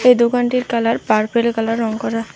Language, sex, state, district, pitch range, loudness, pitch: Bengali, female, West Bengal, Alipurduar, 225-245 Hz, -17 LUFS, 230 Hz